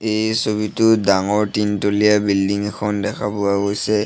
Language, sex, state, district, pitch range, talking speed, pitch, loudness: Assamese, male, Assam, Sonitpur, 100-105 Hz, 135 wpm, 105 Hz, -18 LUFS